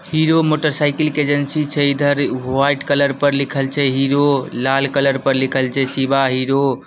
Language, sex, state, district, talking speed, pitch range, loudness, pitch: Maithili, male, Bihar, Samastipur, 175 wpm, 135-145 Hz, -16 LUFS, 140 Hz